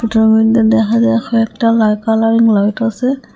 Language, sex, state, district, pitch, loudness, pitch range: Bengali, female, Assam, Hailakandi, 225 Hz, -12 LUFS, 220-230 Hz